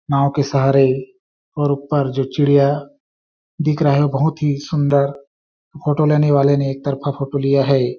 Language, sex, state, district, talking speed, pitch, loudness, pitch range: Hindi, male, Chhattisgarh, Balrampur, 175 wpm, 140 Hz, -17 LUFS, 135-145 Hz